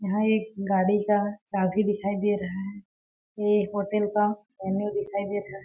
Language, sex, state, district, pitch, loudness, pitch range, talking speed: Hindi, female, Chhattisgarh, Balrampur, 205 Hz, -26 LUFS, 195-210 Hz, 180 wpm